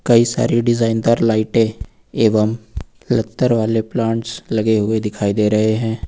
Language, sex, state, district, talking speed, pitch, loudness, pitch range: Hindi, male, Uttar Pradesh, Lucknow, 150 wpm, 110 Hz, -17 LUFS, 110-115 Hz